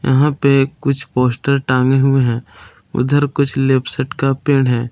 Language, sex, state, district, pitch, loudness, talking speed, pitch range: Hindi, male, Jharkhand, Palamu, 135 Hz, -16 LUFS, 160 wpm, 130-140 Hz